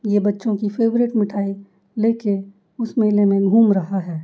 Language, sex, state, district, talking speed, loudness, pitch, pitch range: Hindi, female, Uttar Pradesh, Jyotiba Phule Nagar, 170 wpm, -19 LUFS, 205 Hz, 195-225 Hz